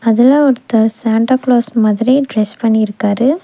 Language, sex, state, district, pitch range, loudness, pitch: Tamil, female, Tamil Nadu, Nilgiris, 220-255 Hz, -13 LUFS, 230 Hz